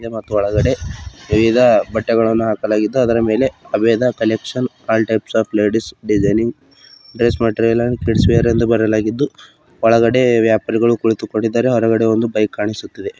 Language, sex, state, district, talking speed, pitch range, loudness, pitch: Kannada, male, Karnataka, Bidar, 125 wpm, 110-115 Hz, -16 LUFS, 115 Hz